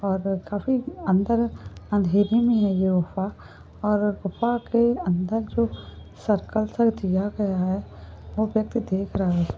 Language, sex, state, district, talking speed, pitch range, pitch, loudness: Hindi, female, Uttar Pradesh, Ghazipur, 145 wpm, 185-225 Hz, 200 Hz, -24 LUFS